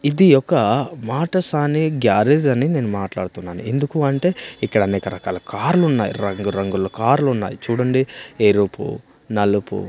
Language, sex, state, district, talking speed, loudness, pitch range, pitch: Telugu, male, Andhra Pradesh, Manyam, 135 wpm, -19 LUFS, 100-145 Hz, 125 Hz